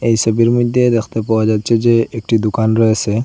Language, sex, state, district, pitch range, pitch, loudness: Bengali, male, Assam, Hailakandi, 110-115 Hz, 115 Hz, -14 LUFS